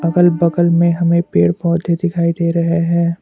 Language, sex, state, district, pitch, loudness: Hindi, male, Assam, Kamrup Metropolitan, 170 Hz, -15 LUFS